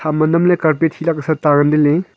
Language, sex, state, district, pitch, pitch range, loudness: Wancho, male, Arunachal Pradesh, Longding, 155 Hz, 150-165 Hz, -15 LUFS